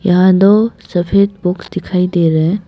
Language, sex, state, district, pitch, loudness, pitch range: Hindi, female, Arunachal Pradesh, Papum Pare, 185 Hz, -13 LUFS, 180-200 Hz